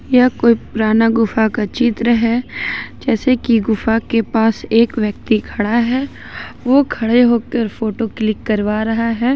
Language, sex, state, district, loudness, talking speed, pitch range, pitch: Hindi, female, Jharkhand, Ranchi, -16 LUFS, 155 wpm, 220-240 Hz, 230 Hz